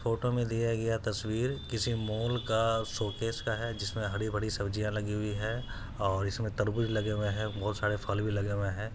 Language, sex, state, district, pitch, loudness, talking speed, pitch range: Maithili, male, Bihar, Supaul, 110 Hz, -32 LUFS, 210 wpm, 105-115 Hz